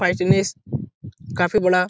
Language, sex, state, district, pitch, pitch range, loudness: Hindi, male, Bihar, Jahanabad, 180 Hz, 180-190 Hz, -21 LUFS